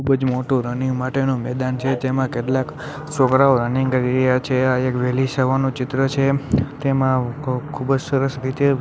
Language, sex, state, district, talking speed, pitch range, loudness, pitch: Gujarati, male, Gujarat, Gandhinagar, 175 wpm, 130-135 Hz, -20 LUFS, 130 Hz